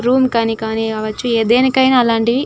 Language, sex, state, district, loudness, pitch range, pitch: Telugu, female, Andhra Pradesh, Chittoor, -15 LUFS, 225-255 Hz, 235 Hz